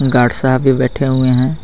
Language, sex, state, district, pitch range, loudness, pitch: Hindi, male, Jharkhand, Garhwa, 125-135 Hz, -14 LUFS, 130 Hz